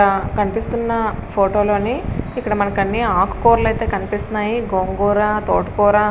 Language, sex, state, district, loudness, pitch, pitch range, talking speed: Telugu, female, Andhra Pradesh, Srikakulam, -18 LUFS, 210 Hz, 205-225 Hz, 130 wpm